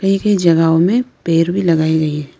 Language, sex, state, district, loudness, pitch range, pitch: Hindi, female, Arunachal Pradesh, Lower Dibang Valley, -14 LUFS, 160-195 Hz, 170 Hz